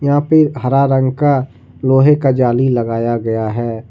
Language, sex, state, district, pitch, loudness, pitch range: Hindi, male, Jharkhand, Ranchi, 130 Hz, -14 LUFS, 120-140 Hz